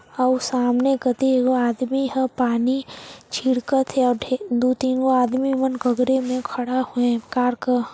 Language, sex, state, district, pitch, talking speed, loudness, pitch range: Chhattisgarhi, female, Chhattisgarh, Sarguja, 255 Hz, 160 wpm, -21 LUFS, 245-260 Hz